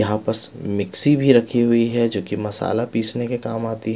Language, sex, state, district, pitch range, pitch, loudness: Hindi, male, Bihar, West Champaran, 105-120 Hz, 115 Hz, -20 LUFS